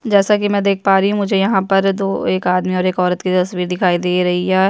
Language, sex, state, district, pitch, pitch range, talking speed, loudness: Hindi, female, Chhattisgarh, Jashpur, 190 Hz, 180-195 Hz, 295 wpm, -16 LUFS